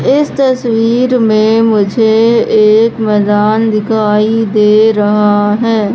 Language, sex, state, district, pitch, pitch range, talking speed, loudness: Hindi, female, Madhya Pradesh, Katni, 220 Hz, 210-230 Hz, 100 wpm, -10 LUFS